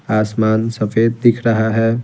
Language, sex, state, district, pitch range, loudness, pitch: Hindi, male, Bihar, Patna, 110-115 Hz, -16 LUFS, 115 Hz